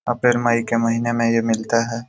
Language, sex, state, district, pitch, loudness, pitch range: Hindi, male, Bihar, Jamui, 115 Hz, -19 LUFS, 115-120 Hz